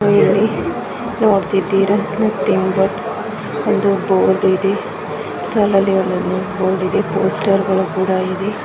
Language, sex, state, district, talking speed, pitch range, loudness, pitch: Kannada, male, Karnataka, Mysore, 90 wpm, 190-210 Hz, -17 LUFS, 195 Hz